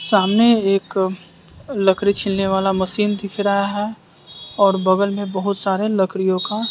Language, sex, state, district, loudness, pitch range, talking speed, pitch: Hindi, male, Bihar, West Champaran, -19 LUFS, 190-205 Hz, 145 wpm, 200 Hz